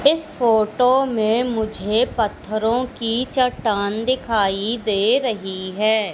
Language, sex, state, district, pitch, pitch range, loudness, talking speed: Hindi, female, Madhya Pradesh, Katni, 225 Hz, 215-250 Hz, -20 LUFS, 105 wpm